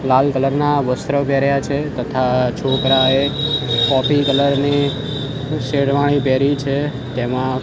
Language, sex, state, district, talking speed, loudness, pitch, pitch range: Gujarati, male, Gujarat, Gandhinagar, 125 wpm, -17 LUFS, 140 Hz, 130-145 Hz